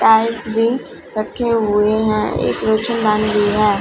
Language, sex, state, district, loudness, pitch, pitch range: Hindi, female, Punjab, Fazilka, -17 LUFS, 220 Hz, 215-230 Hz